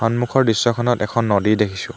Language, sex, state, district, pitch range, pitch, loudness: Assamese, male, Assam, Hailakandi, 105-120 Hz, 115 Hz, -18 LUFS